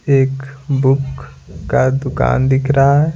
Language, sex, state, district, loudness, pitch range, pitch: Hindi, male, Bihar, Patna, -15 LUFS, 135-140 Hz, 135 Hz